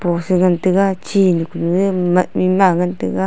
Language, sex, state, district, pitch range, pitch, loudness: Wancho, female, Arunachal Pradesh, Longding, 170-190 Hz, 180 Hz, -16 LUFS